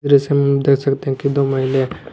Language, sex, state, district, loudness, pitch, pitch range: Hindi, male, Jharkhand, Garhwa, -17 LUFS, 140 Hz, 135-140 Hz